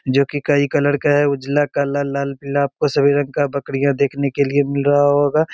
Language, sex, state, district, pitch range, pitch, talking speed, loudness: Hindi, male, Bihar, Begusarai, 140-145 Hz, 140 Hz, 215 wpm, -18 LUFS